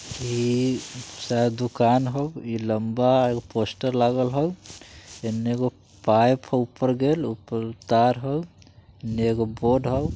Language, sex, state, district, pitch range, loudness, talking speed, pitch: Bajjika, male, Bihar, Vaishali, 115-130 Hz, -24 LUFS, 130 wpm, 120 Hz